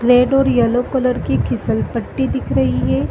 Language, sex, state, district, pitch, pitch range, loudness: Hindi, female, Chhattisgarh, Bastar, 250 Hz, 245-260 Hz, -17 LUFS